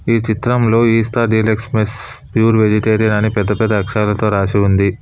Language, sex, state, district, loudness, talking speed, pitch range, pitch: Telugu, male, Telangana, Hyderabad, -15 LUFS, 155 wpm, 105-115 Hz, 110 Hz